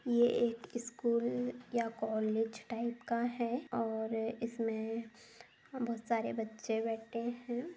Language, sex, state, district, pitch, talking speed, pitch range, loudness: Bhojpuri, female, Bihar, Saran, 235 Hz, 115 wpm, 225-240 Hz, -37 LUFS